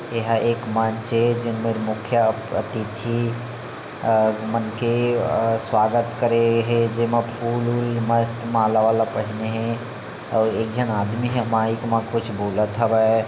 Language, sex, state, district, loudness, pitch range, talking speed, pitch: Chhattisgarhi, male, Chhattisgarh, Bilaspur, -22 LUFS, 110-115 Hz, 140 wpm, 115 Hz